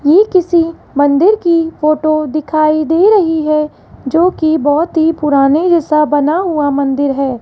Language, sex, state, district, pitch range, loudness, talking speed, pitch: Hindi, female, Rajasthan, Jaipur, 295-335 Hz, -12 LUFS, 155 wpm, 310 Hz